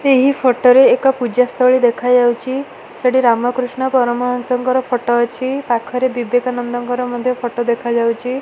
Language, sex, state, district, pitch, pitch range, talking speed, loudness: Odia, female, Odisha, Malkangiri, 250 Hz, 240-255 Hz, 120 wpm, -15 LUFS